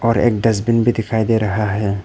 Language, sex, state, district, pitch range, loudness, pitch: Hindi, male, Arunachal Pradesh, Papum Pare, 105-115 Hz, -17 LUFS, 110 Hz